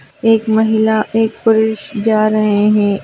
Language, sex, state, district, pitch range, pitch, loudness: Hindi, female, Bihar, Madhepura, 215-225 Hz, 220 Hz, -14 LUFS